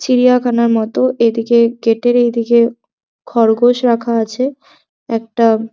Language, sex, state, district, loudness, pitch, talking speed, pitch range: Bengali, male, West Bengal, Jhargram, -14 LUFS, 235 Hz, 115 wpm, 230-245 Hz